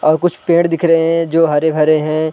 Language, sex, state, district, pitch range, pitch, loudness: Hindi, male, Bihar, Sitamarhi, 155-165 Hz, 165 Hz, -13 LUFS